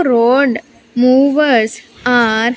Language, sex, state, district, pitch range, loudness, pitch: English, female, Andhra Pradesh, Sri Satya Sai, 235-265 Hz, -12 LUFS, 245 Hz